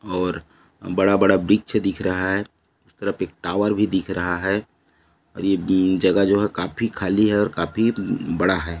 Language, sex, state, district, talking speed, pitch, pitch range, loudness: Hindi, male, Chhattisgarh, Bilaspur, 175 wpm, 95 Hz, 90-105 Hz, -21 LUFS